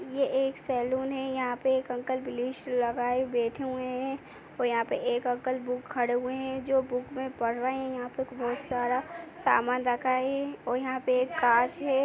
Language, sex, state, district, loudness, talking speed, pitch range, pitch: Kumaoni, female, Uttarakhand, Uttarkashi, -30 LUFS, 200 wpm, 245-265 Hz, 255 Hz